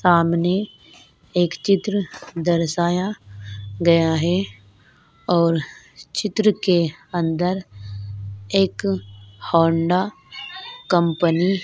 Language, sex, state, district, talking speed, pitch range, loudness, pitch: Hindi, female, Rajasthan, Nagaur, 70 wpm, 130-185 Hz, -20 LUFS, 170 Hz